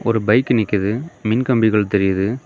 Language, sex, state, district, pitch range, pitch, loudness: Tamil, male, Tamil Nadu, Kanyakumari, 105-120 Hz, 110 Hz, -17 LUFS